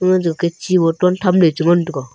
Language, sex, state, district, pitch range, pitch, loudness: Wancho, male, Arunachal Pradesh, Longding, 165-180 Hz, 175 Hz, -15 LUFS